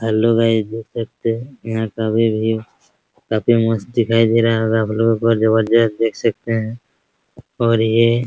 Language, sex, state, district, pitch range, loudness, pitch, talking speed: Hindi, male, Bihar, Araria, 110-115 Hz, -17 LUFS, 115 Hz, 190 wpm